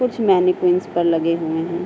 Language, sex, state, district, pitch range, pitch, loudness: Hindi, female, Uttar Pradesh, Hamirpur, 165-180 Hz, 175 Hz, -18 LUFS